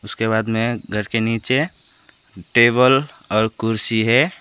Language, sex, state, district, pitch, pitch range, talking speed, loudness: Hindi, male, West Bengal, Alipurduar, 115 Hz, 110-125 Hz, 135 wpm, -18 LUFS